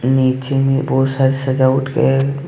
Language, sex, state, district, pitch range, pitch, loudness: Hindi, male, Jharkhand, Deoghar, 130-135 Hz, 135 Hz, -16 LUFS